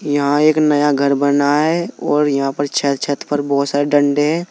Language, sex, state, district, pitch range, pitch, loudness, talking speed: Hindi, male, Uttar Pradesh, Saharanpur, 140-150 Hz, 145 Hz, -16 LUFS, 215 wpm